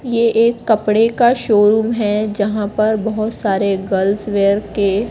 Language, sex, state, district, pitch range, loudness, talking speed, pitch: Hindi, female, Madhya Pradesh, Katni, 205-225 Hz, -16 LUFS, 155 wpm, 215 Hz